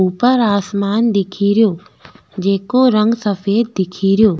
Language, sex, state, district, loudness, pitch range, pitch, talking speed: Rajasthani, female, Rajasthan, Nagaur, -15 LUFS, 195-225 Hz, 200 Hz, 95 wpm